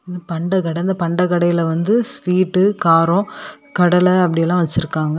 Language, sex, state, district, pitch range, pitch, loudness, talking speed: Tamil, female, Tamil Nadu, Kanyakumari, 165-185 Hz, 180 Hz, -16 LUFS, 125 wpm